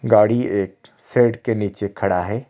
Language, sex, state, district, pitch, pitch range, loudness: Hindi, male, Odisha, Khordha, 105 Hz, 100-115 Hz, -20 LUFS